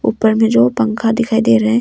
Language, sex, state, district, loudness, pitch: Hindi, female, Arunachal Pradesh, Longding, -14 LUFS, 215 Hz